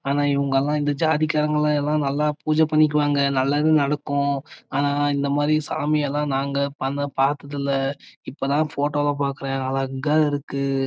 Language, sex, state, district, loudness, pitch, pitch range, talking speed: Tamil, male, Karnataka, Chamarajanagar, -22 LUFS, 145 Hz, 140-150 Hz, 125 wpm